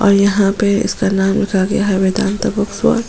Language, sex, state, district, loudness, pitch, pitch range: Hindi, female, Chhattisgarh, Sukma, -15 LUFS, 200 Hz, 195-205 Hz